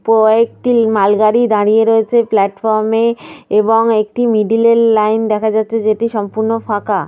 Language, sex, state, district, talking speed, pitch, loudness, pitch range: Bengali, female, Jharkhand, Sahebganj, 145 wpm, 220 Hz, -13 LUFS, 215-230 Hz